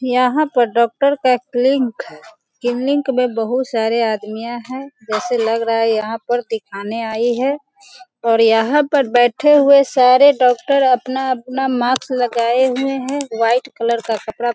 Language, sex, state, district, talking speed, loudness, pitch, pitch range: Hindi, female, Bihar, Sitamarhi, 155 wpm, -16 LUFS, 245 Hz, 230-265 Hz